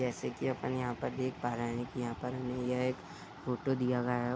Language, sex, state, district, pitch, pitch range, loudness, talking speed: Hindi, male, Uttar Pradesh, Budaun, 125 Hz, 120-125 Hz, -36 LUFS, 260 wpm